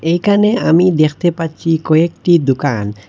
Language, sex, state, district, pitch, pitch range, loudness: Bengali, male, Assam, Hailakandi, 165 Hz, 150-175 Hz, -13 LUFS